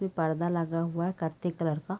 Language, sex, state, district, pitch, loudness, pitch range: Hindi, female, Chhattisgarh, Raigarh, 170 Hz, -31 LUFS, 160-175 Hz